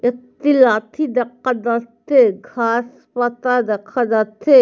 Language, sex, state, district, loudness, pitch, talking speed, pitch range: Bengali, male, West Bengal, Kolkata, -17 LUFS, 245 Hz, 105 wpm, 230-255 Hz